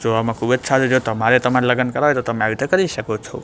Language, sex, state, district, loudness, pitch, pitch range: Gujarati, male, Gujarat, Gandhinagar, -18 LUFS, 125 Hz, 115-130 Hz